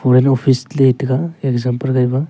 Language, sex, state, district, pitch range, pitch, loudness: Wancho, male, Arunachal Pradesh, Longding, 125-135 Hz, 130 Hz, -16 LUFS